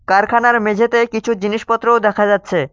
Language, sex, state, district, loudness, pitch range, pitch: Bengali, male, West Bengal, Cooch Behar, -15 LUFS, 205-235 Hz, 220 Hz